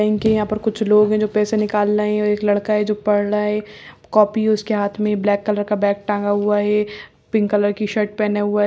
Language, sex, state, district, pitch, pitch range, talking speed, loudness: Hindi, female, Uttarakhand, Uttarkashi, 210 Hz, 205-215 Hz, 265 wpm, -18 LUFS